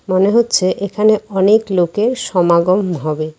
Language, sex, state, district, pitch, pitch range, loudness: Bengali, female, West Bengal, Cooch Behar, 190 Hz, 175-215 Hz, -14 LUFS